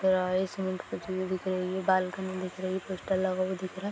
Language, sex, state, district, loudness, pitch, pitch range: Hindi, female, Jharkhand, Sahebganj, -31 LUFS, 185 Hz, 185-190 Hz